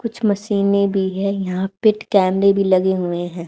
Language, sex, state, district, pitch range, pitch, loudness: Hindi, female, Haryana, Charkhi Dadri, 185-200 Hz, 195 Hz, -18 LUFS